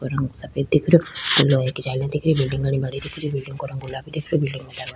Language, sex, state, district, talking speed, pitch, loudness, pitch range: Rajasthani, female, Rajasthan, Churu, 280 wpm, 135 Hz, -22 LUFS, 130-150 Hz